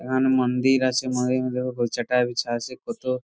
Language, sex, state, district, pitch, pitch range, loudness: Bengali, male, West Bengal, Purulia, 125 Hz, 125-130 Hz, -23 LUFS